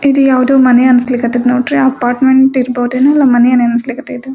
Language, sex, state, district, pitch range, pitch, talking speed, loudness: Kannada, female, Karnataka, Gulbarga, 245-265 Hz, 255 Hz, 180 wpm, -10 LUFS